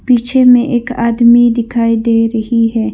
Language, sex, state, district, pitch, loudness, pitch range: Hindi, female, Arunachal Pradesh, Longding, 235 Hz, -11 LUFS, 230-240 Hz